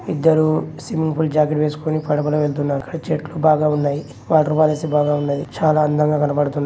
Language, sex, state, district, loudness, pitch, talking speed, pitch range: Telugu, male, Telangana, Karimnagar, -19 LUFS, 150 Hz, 160 wpm, 145-155 Hz